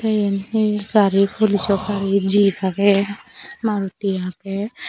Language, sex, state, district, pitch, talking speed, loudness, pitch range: Chakma, female, Tripura, Dhalai, 200 Hz, 110 wpm, -19 LUFS, 195-215 Hz